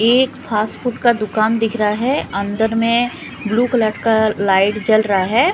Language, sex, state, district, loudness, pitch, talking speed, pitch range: Hindi, female, Punjab, Fazilka, -16 LUFS, 220 Hz, 185 wpm, 210-240 Hz